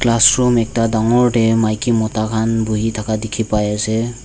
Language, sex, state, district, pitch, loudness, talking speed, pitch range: Nagamese, male, Nagaland, Dimapur, 115 Hz, -16 LUFS, 140 wpm, 110-115 Hz